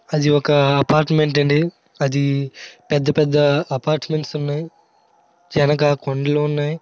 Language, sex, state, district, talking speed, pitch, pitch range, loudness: Telugu, male, Andhra Pradesh, Srikakulam, 90 wpm, 150 Hz, 145-155 Hz, -18 LUFS